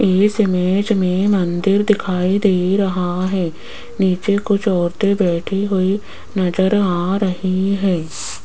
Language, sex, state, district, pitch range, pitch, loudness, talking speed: Hindi, female, Rajasthan, Jaipur, 180-200 Hz, 190 Hz, -17 LUFS, 120 wpm